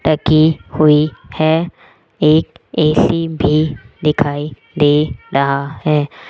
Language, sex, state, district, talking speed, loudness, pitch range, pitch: Hindi, female, Rajasthan, Jaipur, 85 wpm, -15 LUFS, 145-155 Hz, 150 Hz